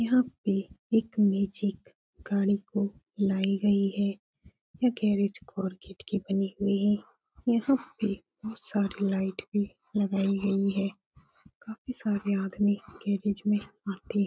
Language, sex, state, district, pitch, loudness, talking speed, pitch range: Hindi, female, Bihar, Supaul, 200 Hz, -29 LUFS, 130 wpm, 195-210 Hz